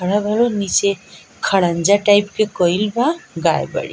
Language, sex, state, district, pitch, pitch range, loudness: Bhojpuri, female, Bihar, East Champaran, 205 Hz, 190-210 Hz, -17 LUFS